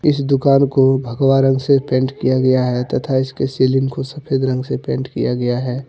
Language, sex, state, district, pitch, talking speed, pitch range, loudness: Hindi, male, Jharkhand, Deoghar, 130 Hz, 215 wpm, 130-135 Hz, -17 LUFS